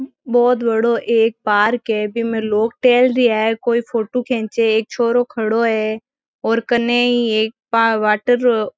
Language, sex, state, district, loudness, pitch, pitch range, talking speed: Marwari, female, Rajasthan, Nagaur, -17 LUFS, 230 Hz, 220-245 Hz, 165 wpm